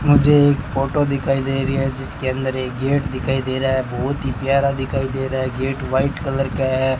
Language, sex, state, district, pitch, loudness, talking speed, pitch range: Hindi, male, Rajasthan, Bikaner, 135 Hz, -20 LUFS, 230 wpm, 130-135 Hz